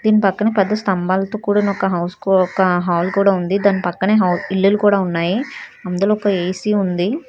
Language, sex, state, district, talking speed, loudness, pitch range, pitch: Telugu, female, Telangana, Hyderabad, 175 wpm, -17 LUFS, 185-205 Hz, 195 Hz